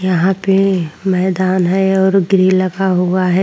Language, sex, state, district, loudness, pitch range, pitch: Hindi, female, Chhattisgarh, Korba, -14 LUFS, 185-190 Hz, 185 Hz